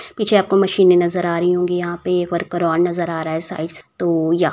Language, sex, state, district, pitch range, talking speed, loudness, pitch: Hindi, female, Uttar Pradesh, Ghazipur, 170-180 Hz, 250 wpm, -18 LUFS, 175 Hz